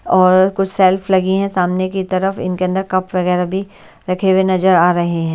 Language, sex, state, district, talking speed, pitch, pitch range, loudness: Hindi, male, Delhi, New Delhi, 215 wpm, 185 Hz, 180-190 Hz, -15 LUFS